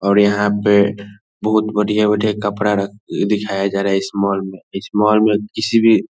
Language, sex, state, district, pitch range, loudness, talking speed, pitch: Hindi, male, Bihar, Darbhanga, 100-105 Hz, -17 LUFS, 185 wpm, 105 Hz